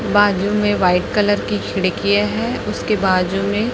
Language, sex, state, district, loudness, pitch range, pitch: Hindi, female, Chhattisgarh, Raipur, -17 LUFS, 180-205 Hz, 195 Hz